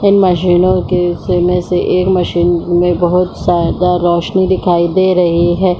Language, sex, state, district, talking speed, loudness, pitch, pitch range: Hindi, female, Chhattisgarh, Bilaspur, 165 wpm, -12 LUFS, 180 Hz, 175-185 Hz